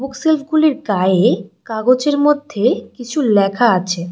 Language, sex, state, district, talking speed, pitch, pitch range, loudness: Bengali, female, West Bengal, Cooch Behar, 100 wpm, 245 Hz, 200-290 Hz, -16 LUFS